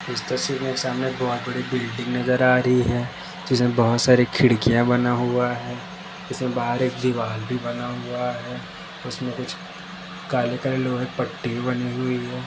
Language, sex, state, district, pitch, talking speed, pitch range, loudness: Hindi, male, Maharashtra, Dhule, 125 Hz, 170 wpm, 120-125 Hz, -23 LUFS